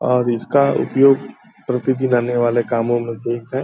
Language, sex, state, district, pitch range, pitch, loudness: Hindi, male, Bihar, Purnia, 120-130 Hz, 120 Hz, -18 LUFS